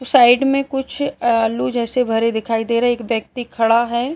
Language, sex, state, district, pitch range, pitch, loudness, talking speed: Hindi, male, Maharashtra, Nagpur, 230-255 Hz, 240 Hz, -17 LUFS, 200 wpm